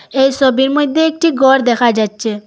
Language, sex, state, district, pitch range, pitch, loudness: Bengali, female, Assam, Hailakandi, 235-285 Hz, 265 Hz, -13 LUFS